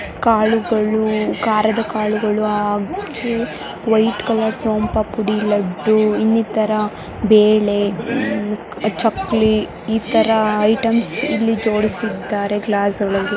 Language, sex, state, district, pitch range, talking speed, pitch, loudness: Kannada, female, Karnataka, Mysore, 210-225 Hz, 80 wpm, 215 Hz, -17 LUFS